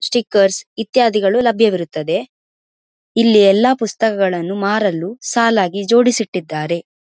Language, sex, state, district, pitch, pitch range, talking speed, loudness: Kannada, female, Karnataka, Dakshina Kannada, 215 Hz, 190-230 Hz, 85 wpm, -15 LUFS